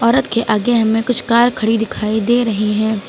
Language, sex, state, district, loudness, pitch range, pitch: Hindi, female, Uttar Pradesh, Lucknow, -15 LUFS, 220-240 Hz, 225 Hz